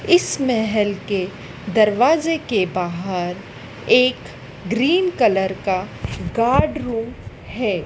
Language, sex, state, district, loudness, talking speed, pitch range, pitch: Hindi, female, Madhya Pradesh, Dhar, -19 LUFS, 100 wpm, 190-250 Hz, 215 Hz